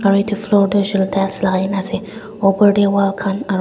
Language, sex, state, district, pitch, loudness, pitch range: Nagamese, female, Nagaland, Dimapur, 200 Hz, -16 LUFS, 195-205 Hz